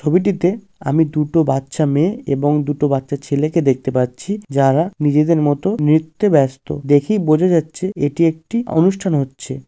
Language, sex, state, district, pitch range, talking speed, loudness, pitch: Bengali, male, West Bengal, Jalpaiguri, 140-175 Hz, 150 wpm, -17 LUFS, 150 Hz